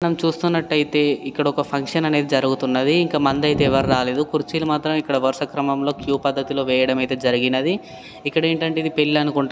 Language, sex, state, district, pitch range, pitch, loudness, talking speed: Telugu, male, Karnataka, Gulbarga, 135-155 Hz, 145 Hz, -20 LUFS, 175 wpm